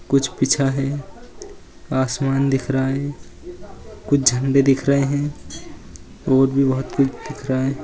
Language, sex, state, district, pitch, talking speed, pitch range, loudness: Hindi, male, Bihar, Jahanabad, 135 Hz, 145 wpm, 135-140 Hz, -20 LUFS